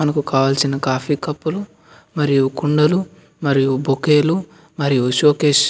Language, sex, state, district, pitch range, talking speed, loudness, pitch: Telugu, male, Andhra Pradesh, Anantapur, 135-155 Hz, 125 wpm, -17 LUFS, 145 Hz